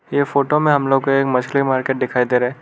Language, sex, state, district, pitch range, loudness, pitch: Hindi, male, Arunachal Pradesh, Lower Dibang Valley, 125-140 Hz, -17 LUFS, 135 Hz